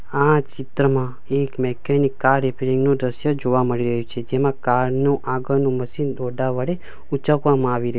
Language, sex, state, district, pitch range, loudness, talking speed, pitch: Gujarati, male, Gujarat, Valsad, 125-140 Hz, -21 LUFS, 175 wpm, 130 Hz